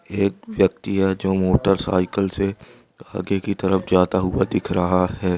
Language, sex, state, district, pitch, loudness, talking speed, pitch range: Hindi, male, Andhra Pradesh, Anantapur, 95 Hz, -21 LUFS, 155 wpm, 90-100 Hz